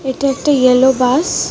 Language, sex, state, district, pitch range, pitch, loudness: Bengali, female, Tripura, West Tripura, 255-280 Hz, 265 Hz, -13 LUFS